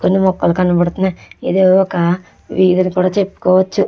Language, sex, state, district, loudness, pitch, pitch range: Telugu, female, Andhra Pradesh, Chittoor, -15 LUFS, 185 Hz, 180-190 Hz